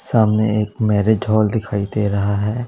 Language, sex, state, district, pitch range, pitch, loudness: Hindi, male, Punjab, Pathankot, 105-110 Hz, 105 Hz, -18 LUFS